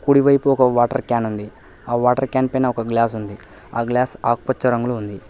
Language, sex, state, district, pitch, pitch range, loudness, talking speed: Telugu, male, Telangana, Hyderabad, 120 Hz, 115-130 Hz, -19 LUFS, 195 wpm